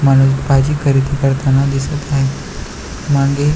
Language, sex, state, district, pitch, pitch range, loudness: Marathi, male, Maharashtra, Pune, 135 Hz, 135-140 Hz, -15 LUFS